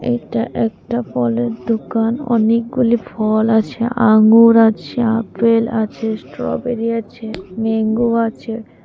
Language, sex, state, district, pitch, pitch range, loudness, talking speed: Bengali, female, Tripura, West Tripura, 225 Hz, 220-230 Hz, -16 LUFS, 100 wpm